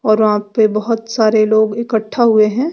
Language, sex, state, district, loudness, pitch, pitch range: Hindi, female, Bihar, West Champaran, -14 LUFS, 220 Hz, 215-230 Hz